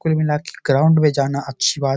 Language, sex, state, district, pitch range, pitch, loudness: Hindi, male, Bihar, Samastipur, 135-155 Hz, 145 Hz, -18 LUFS